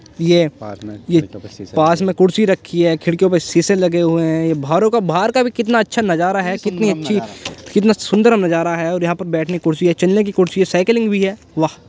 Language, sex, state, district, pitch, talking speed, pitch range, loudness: Hindi, male, Uttar Pradesh, Jyotiba Phule Nagar, 175 Hz, 220 wpm, 165-200 Hz, -16 LUFS